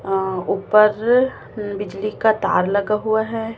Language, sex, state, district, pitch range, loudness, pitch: Hindi, female, Chhattisgarh, Raipur, 200-220 Hz, -19 LUFS, 210 Hz